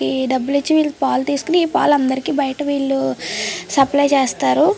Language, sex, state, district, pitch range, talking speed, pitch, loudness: Telugu, female, Andhra Pradesh, Srikakulam, 265-295 Hz, 150 wpm, 280 Hz, -17 LUFS